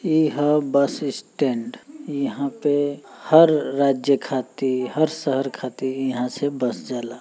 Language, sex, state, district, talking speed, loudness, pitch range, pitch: Bhojpuri, male, Uttar Pradesh, Deoria, 140 wpm, -22 LUFS, 130-155 Hz, 140 Hz